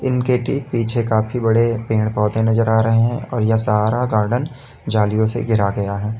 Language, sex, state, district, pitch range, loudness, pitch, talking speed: Hindi, male, Uttar Pradesh, Lalitpur, 110-120 Hz, -18 LUFS, 110 Hz, 195 wpm